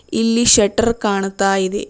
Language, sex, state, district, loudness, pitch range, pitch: Kannada, female, Karnataka, Bidar, -15 LUFS, 195-230 Hz, 205 Hz